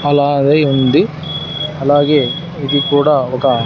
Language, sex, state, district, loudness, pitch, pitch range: Telugu, male, Andhra Pradesh, Sri Satya Sai, -14 LUFS, 145 Hz, 140-150 Hz